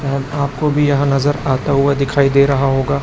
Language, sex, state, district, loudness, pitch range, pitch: Hindi, male, Chhattisgarh, Raipur, -15 LUFS, 135-145 Hz, 140 Hz